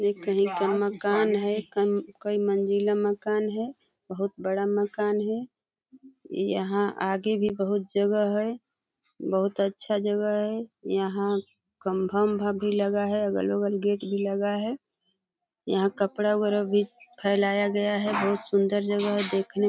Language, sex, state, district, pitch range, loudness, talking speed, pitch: Hindi, female, Uttar Pradesh, Deoria, 200-210 Hz, -27 LUFS, 150 wpm, 205 Hz